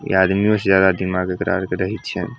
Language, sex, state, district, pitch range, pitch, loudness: Maithili, male, Bihar, Samastipur, 95-100 Hz, 95 Hz, -18 LUFS